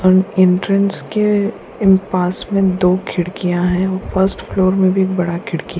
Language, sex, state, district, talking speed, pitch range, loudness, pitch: Hindi, female, Bihar, Kishanganj, 185 wpm, 180-195 Hz, -16 LUFS, 185 Hz